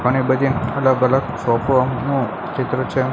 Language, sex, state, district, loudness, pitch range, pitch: Gujarati, male, Gujarat, Gandhinagar, -19 LUFS, 125-130 Hz, 130 Hz